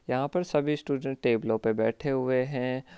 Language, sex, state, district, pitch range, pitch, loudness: Hindi, male, Rajasthan, Churu, 120-140 Hz, 130 Hz, -28 LUFS